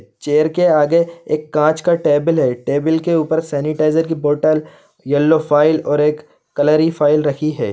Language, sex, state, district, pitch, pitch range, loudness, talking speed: Hindi, male, Chhattisgarh, Bilaspur, 155 Hz, 145-160 Hz, -16 LUFS, 180 wpm